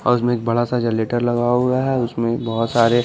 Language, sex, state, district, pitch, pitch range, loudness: Hindi, male, Bihar, Patna, 120 Hz, 115-120 Hz, -19 LUFS